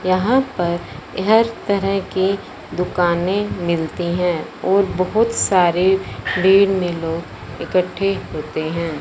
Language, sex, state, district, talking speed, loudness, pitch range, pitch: Hindi, male, Punjab, Fazilka, 115 wpm, -19 LUFS, 170-195 Hz, 185 Hz